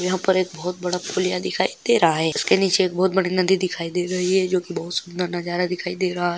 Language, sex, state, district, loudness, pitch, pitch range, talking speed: Hindi, male, Chhattisgarh, Balrampur, -21 LUFS, 180 Hz, 175-185 Hz, 265 wpm